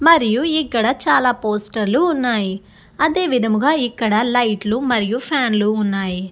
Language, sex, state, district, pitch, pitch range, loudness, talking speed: Telugu, female, Andhra Pradesh, Guntur, 235 Hz, 215-275 Hz, -17 LUFS, 145 wpm